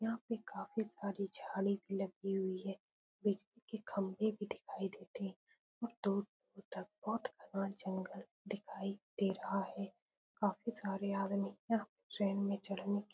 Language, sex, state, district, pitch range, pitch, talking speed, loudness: Hindi, female, Bihar, Saran, 195-210 Hz, 200 Hz, 150 wpm, -41 LUFS